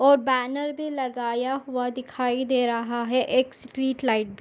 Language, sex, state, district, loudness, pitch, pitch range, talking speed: Hindi, female, Chhattisgarh, Bastar, -25 LUFS, 255 Hz, 245-265 Hz, 175 wpm